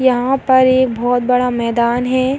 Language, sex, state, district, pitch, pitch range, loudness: Hindi, female, Uttar Pradesh, Gorakhpur, 250 Hz, 245-260 Hz, -14 LUFS